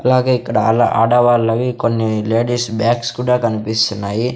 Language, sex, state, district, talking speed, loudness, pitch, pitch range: Telugu, male, Andhra Pradesh, Sri Satya Sai, 135 wpm, -16 LUFS, 115 Hz, 110-120 Hz